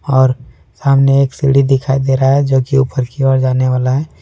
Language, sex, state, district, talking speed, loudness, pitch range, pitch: Hindi, male, Jharkhand, Deoghar, 230 wpm, -13 LUFS, 130-135 Hz, 135 Hz